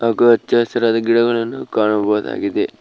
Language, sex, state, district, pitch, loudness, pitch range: Kannada, male, Karnataka, Koppal, 115 Hz, -16 LUFS, 110-120 Hz